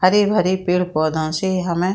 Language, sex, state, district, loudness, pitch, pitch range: Hindi, female, Bihar, Saran, -19 LUFS, 180 Hz, 170-185 Hz